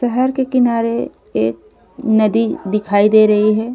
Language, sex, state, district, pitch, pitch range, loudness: Hindi, female, Uttar Pradesh, Jyotiba Phule Nagar, 220 Hz, 210-245 Hz, -15 LUFS